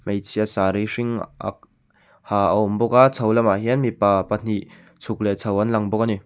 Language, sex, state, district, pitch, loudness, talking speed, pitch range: Mizo, male, Mizoram, Aizawl, 105 Hz, -20 LUFS, 210 wpm, 100-115 Hz